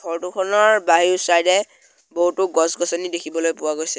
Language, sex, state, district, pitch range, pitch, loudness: Assamese, male, Assam, Sonitpur, 165-185 Hz, 175 Hz, -19 LUFS